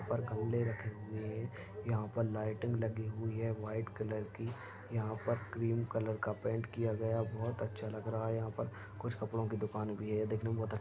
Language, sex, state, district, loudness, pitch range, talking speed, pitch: Hindi, male, Chhattisgarh, Raigarh, -39 LUFS, 110-115 Hz, 245 wpm, 110 Hz